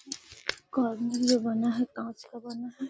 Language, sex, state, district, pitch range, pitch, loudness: Hindi, female, Bihar, Gaya, 235-250 Hz, 240 Hz, -30 LUFS